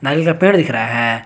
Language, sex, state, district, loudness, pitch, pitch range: Hindi, male, Jharkhand, Garhwa, -14 LUFS, 135 Hz, 115-165 Hz